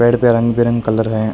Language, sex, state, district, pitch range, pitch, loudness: Hindi, male, Karnataka, Bangalore, 110-120 Hz, 115 Hz, -15 LUFS